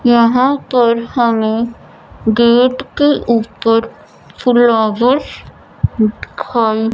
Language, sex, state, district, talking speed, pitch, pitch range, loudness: Hindi, female, Punjab, Fazilka, 70 wpm, 235 Hz, 225-250 Hz, -14 LUFS